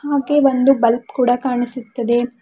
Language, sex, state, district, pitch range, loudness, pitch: Kannada, female, Karnataka, Bidar, 240-275 Hz, -17 LUFS, 250 Hz